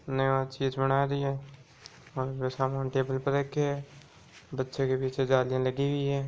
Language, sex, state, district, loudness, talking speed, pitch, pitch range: Marwari, male, Rajasthan, Nagaur, -30 LUFS, 170 wpm, 135 Hz, 130-140 Hz